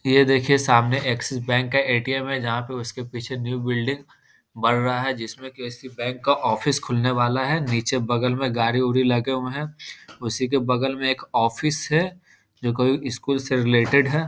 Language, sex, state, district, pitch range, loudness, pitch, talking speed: Hindi, male, Bihar, Muzaffarpur, 120-135 Hz, -22 LUFS, 130 Hz, 195 wpm